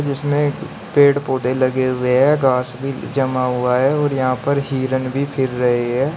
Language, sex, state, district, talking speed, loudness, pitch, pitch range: Hindi, male, Uttar Pradesh, Shamli, 195 wpm, -18 LUFS, 130 Hz, 130-140 Hz